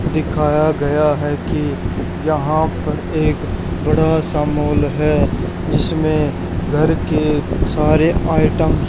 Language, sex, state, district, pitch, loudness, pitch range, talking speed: Hindi, male, Haryana, Charkhi Dadri, 150 Hz, -17 LUFS, 145-155 Hz, 115 wpm